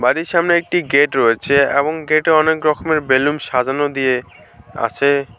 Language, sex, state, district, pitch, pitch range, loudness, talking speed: Bengali, male, West Bengal, Alipurduar, 140 Hz, 130-155 Hz, -16 LUFS, 145 wpm